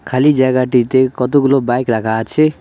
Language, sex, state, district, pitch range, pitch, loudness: Bengali, male, West Bengal, Cooch Behar, 125-135 Hz, 130 Hz, -14 LUFS